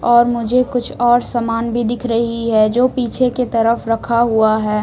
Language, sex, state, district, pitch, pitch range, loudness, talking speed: Hindi, female, Odisha, Malkangiri, 235 Hz, 230-245 Hz, -16 LUFS, 200 wpm